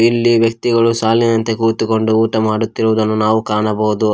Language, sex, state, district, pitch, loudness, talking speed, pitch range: Kannada, male, Karnataka, Koppal, 110 Hz, -14 LUFS, 115 wpm, 110-115 Hz